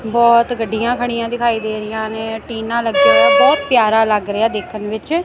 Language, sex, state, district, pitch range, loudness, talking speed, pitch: Punjabi, female, Punjab, Kapurthala, 215-235 Hz, -15 LUFS, 170 wpm, 225 Hz